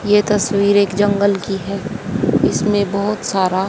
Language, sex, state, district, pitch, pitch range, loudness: Hindi, female, Haryana, Jhajjar, 200 Hz, 195-205 Hz, -17 LUFS